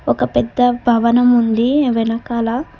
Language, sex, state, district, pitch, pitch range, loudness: Telugu, female, Telangana, Hyderabad, 235 Hz, 225-245 Hz, -15 LUFS